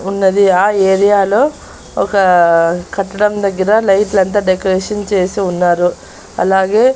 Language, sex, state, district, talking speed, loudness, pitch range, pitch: Telugu, female, Andhra Pradesh, Annamaya, 95 wpm, -13 LUFS, 185-205 Hz, 195 Hz